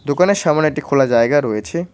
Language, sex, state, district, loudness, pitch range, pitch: Bengali, male, West Bengal, Cooch Behar, -16 LUFS, 135-170 Hz, 150 Hz